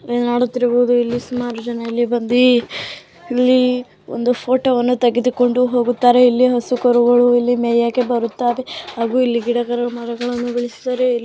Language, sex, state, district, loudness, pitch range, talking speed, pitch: Kannada, female, Karnataka, Mysore, -17 LUFS, 240-250 Hz, 125 wpm, 245 Hz